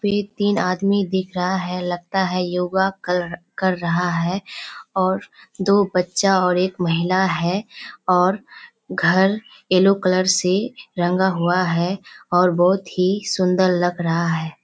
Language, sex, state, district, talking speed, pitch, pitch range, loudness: Hindi, female, Bihar, Kishanganj, 145 wpm, 185 Hz, 180-195 Hz, -20 LUFS